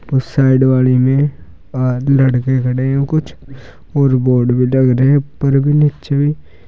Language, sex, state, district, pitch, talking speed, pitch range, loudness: Hindi, male, Uttar Pradesh, Saharanpur, 130 Hz, 110 wpm, 125-140 Hz, -14 LUFS